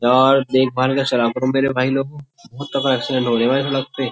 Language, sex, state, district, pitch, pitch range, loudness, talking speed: Hindi, male, Uttar Pradesh, Jyotiba Phule Nagar, 130 Hz, 130-135 Hz, -18 LUFS, 235 wpm